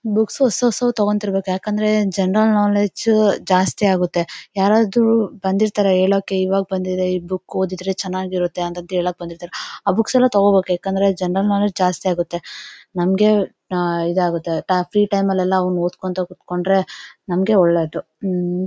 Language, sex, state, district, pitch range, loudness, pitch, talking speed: Kannada, female, Karnataka, Bellary, 180-205 Hz, -18 LUFS, 190 Hz, 125 wpm